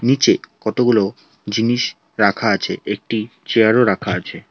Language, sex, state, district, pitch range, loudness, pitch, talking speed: Bengali, male, West Bengal, Alipurduar, 110-120 Hz, -18 LUFS, 115 Hz, 120 wpm